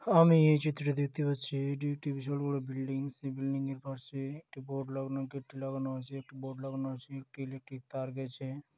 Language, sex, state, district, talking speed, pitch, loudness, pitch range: Bengali, male, West Bengal, Malda, 200 wpm, 135 Hz, -34 LUFS, 135-140 Hz